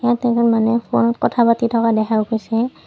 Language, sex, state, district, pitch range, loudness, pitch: Assamese, female, Assam, Kamrup Metropolitan, 220-235 Hz, -17 LUFS, 230 Hz